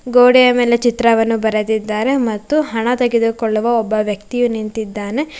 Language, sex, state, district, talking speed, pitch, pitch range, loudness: Kannada, female, Karnataka, Bangalore, 110 wpm, 230 Hz, 220-245 Hz, -15 LUFS